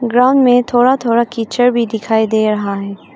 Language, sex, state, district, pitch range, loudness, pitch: Hindi, female, Arunachal Pradesh, Longding, 220-245 Hz, -13 LUFS, 235 Hz